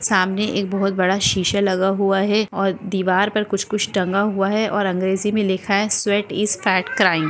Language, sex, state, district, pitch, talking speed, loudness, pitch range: Hindi, female, Goa, North and South Goa, 195 Hz, 215 wpm, -19 LUFS, 190-210 Hz